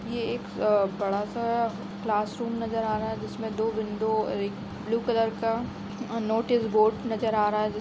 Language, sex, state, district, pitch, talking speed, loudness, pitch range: Hindi, female, Chhattisgarh, Raigarh, 220 Hz, 205 wpm, -28 LUFS, 210-230 Hz